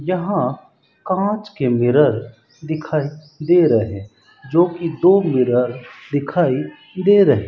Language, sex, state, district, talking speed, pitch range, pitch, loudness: Hindi, male, Rajasthan, Bikaner, 110 wpm, 125-175 Hz, 155 Hz, -18 LUFS